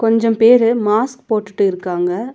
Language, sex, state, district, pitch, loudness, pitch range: Tamil, female, Tamil Nadu, Nilgiris, 225 Hz, -15 LUFS, 200-230 Hz